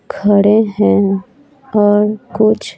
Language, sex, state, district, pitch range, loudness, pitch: Hindi, female, Bihar, Patna, 205-220 Hz, -13 LUFS, 210 Hz